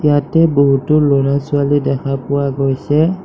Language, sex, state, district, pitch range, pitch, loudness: Assamese, male, Assam, Kamrup Metropolitan, 140-150 Hz, 140 Hz, -14 LUFS